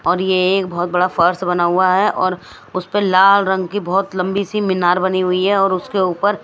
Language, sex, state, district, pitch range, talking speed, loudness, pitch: Hindi, female, Himachal Pradesh, Shimla, 180-195 Hz, 215 wpm, -16 LUFS, 185 Hz